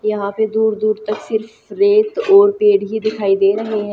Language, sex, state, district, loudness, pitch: Hindi, female, Haryana, Jhajjar, -15 LUFS, 220 Hz